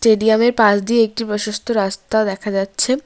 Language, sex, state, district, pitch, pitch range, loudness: Bengali, female, West Bengal, Cooch Behar, 220 Hz, 205-230 Hz, -17 LUFS